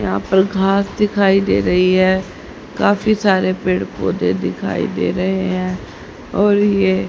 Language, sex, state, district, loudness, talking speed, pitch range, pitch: Hindi, female, Haryana, Charkhi Dadri, -16 LUFS, 145 wpm, 185-200 Hz, 190 Hz